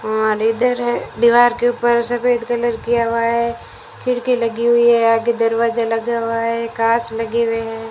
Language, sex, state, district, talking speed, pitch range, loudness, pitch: Hindi, female, Rajasthan, Bikaner, 175 wpm, 230-240 Hz, -17 LUFS, 235 Hz